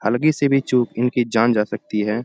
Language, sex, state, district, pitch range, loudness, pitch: Hindi, male, Bihar, Bhagalpur, 110-125 Hz, -19 LUFS, 120 Hz